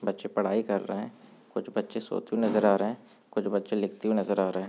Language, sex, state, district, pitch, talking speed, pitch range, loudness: Hindi, male, Goa, North and South Goa, 100 Hz, 270 wpm, 95-110 Hz, -29 LUFS